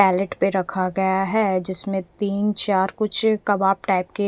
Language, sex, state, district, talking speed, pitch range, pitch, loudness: Hindi, female, Punjab, Fazilka, 170 wpm, 190-205 Hz, 195 Hz, -21 LUFS